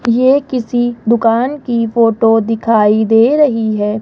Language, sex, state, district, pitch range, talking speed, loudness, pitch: Hindi, female, Rajasthan, Jaipur, 225-240 Hz, 135 wpm, -12 LUFS, 230 Hz